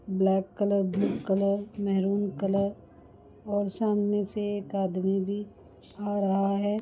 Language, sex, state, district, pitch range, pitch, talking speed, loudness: Hindi, female, Bihar, Gaya, 195-205 Hz, 200 Hz, 130 wpm, -28 LUFS